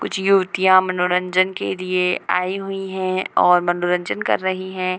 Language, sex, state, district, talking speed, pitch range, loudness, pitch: Hindi, female, Bihar, Gopalganj, 155 wpm, 180-190 Hz, -19 LUFS, 185 Hz